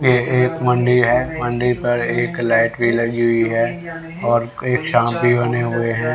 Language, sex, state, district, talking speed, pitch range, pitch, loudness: Hindi, male, Haryana, Rohtak, 185 wpm, 120-125 Hz, 120 Hz, -17 LUFS